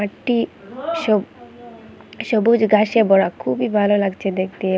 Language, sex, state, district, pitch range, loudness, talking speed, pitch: Bengali, female, Assam, Hailakandi, 195-230 Hz, -18 LUFS, 115 wpm, 210 Hz